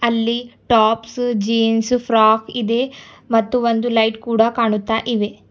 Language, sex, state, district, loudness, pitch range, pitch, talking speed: Kannada, female, Karnataka, Bidar, -17 LUFS, 225-240 Hz, 230 Hz, 120 wpm